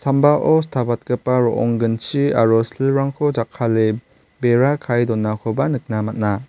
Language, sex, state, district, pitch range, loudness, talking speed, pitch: Garo, male, Meghalaya, West Garo Hills, 115-135 Hz, -18 LUFS, 110 wpm, 120 Hz